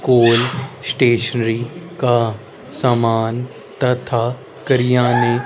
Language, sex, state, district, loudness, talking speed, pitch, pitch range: Hindi, male, Haryana, Rohtak, -17 LUFS, 65 wpm, 120 Hz, 115-125 Hz